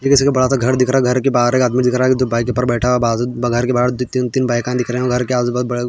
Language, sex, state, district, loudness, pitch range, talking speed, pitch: Hindi, male, Bihar, Patna, -16 LUFS, 120-130 Hz, 355 wpm, 125 Hz